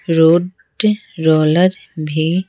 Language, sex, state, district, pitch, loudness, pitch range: Hindi, female, Bihar, Patna, 170 Hz, -15 LUFS, 160-185 Hz